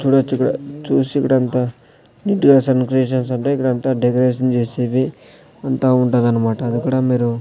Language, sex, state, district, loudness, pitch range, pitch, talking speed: Telugu, male, Andhra Pradesh, Sri Satya Sai, -17 LUFS, 125-135 Hz, 130 Hz, 115 wpm